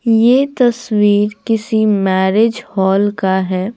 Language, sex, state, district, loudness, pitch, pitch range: Hindi, female, Bihar, Patna, -14 LUFS, 210 Hz, 195-230 Hz